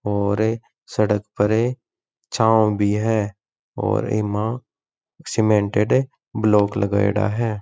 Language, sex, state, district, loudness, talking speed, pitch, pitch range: Rajasthani, male, Rajasthan, Churu, -20 LUFS, 100 wpm, 105 Hz, 105-110 Hz